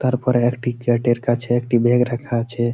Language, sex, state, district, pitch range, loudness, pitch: Bengali, male, West Bengal, Malda, 120-125 Hz, -19 LUFS, 120 Hz